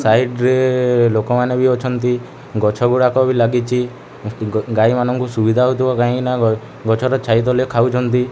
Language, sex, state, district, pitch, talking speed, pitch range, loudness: Odia, male, Odisha, Khordha, 125 Hz, 125 wpm, 115-125 Hz, -16 LUFS